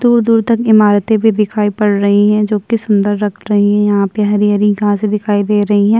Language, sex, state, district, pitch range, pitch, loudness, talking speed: Hindi, female, Uttar Pradesh, Jyotiba Phule Nagar, 205-215 Hz, 210 Hz, -12 LUFS, 210 wpm